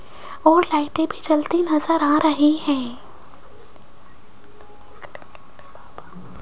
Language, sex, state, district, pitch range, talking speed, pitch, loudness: Hindi, female, Rajasthan, Jaipur, 295-330 Hz, 75 wpm, 315 Hz, -19 LUFS